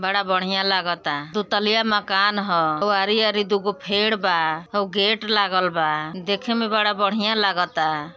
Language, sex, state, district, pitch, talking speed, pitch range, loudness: Hindi, female, Uttar Pradesh, Ghazipur, 200 Hz, 155 wpm, 175-210 Hz, -21 LUFS